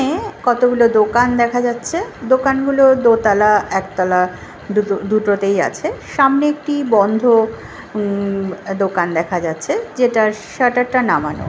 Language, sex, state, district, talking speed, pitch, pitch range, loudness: Bengali, female, West Bengal, Jhargram, 115 wpm, 225 Hz, 200-255 Hz, -16 LUFS